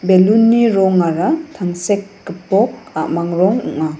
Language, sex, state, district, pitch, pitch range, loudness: Garo, female, Meghalaya, West Garo Hills, 190 Hz, 175-225 Hz, -15 LUFS